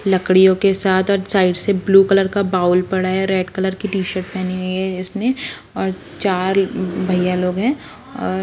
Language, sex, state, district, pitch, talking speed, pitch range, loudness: Hindi, female, Bihar, Sitamarhi, 190 Hz, 180 wpm, 185-195 Hz, -17 LUFS